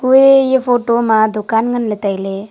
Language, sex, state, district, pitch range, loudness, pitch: Wancho, female, Arunachal Pradesh, Longding, 210-250 Hz, -13 LUFS, 230 Hz